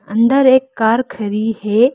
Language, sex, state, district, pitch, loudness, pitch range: Hindi, female, Arunachal Pradesh, Lower Dibang Valley, 225 Hz, -15 LUFS, 215-255 Hz